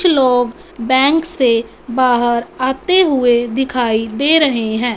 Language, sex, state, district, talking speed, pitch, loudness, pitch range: Hindi, female, Punjab, Fazilka, 130 wpm, 255 Hz, -14 LUFS, 240-280 Hz